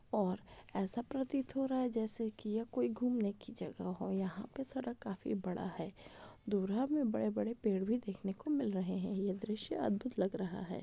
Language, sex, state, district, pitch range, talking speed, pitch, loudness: Hindi, female, Rajasthan, Nagaur, 195-245 Hz, 205 wpm, 215 Hz, -38 LUFS